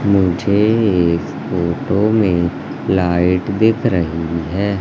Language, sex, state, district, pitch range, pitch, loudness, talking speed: Hindi, male, Madhya Pradesh, Katni, 85-100 Hz, 90 Hz, -16 LUFS, 100 wpm